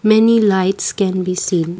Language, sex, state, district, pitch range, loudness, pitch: English, female, Assam, Kamrup Metropolitan, 180-215 Hz, -15 LUFS, 190 Hz